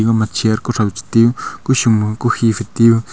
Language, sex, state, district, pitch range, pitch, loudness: Wancho, male, Arunachal Pradesh, Longding, 110-115 Hz, 115 Hz, -15 LUFS